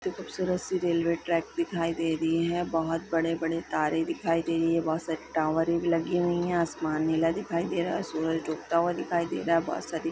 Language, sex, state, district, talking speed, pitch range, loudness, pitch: Hindi, female, Chhattisgarh, Korba, 230 wpm, 165-170 Hz, -28 LUFS, 165 Hz